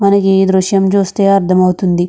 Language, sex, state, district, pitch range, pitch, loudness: Telugu, female, Andhra Pradesh, Krishna, 185-195 Hz, 190 Hz, -11 LUFS